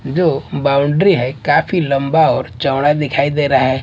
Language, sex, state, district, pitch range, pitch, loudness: Hindi, male, Maharashtra, Washim, 135-155 Hz, 145 Hz, -15 LUFS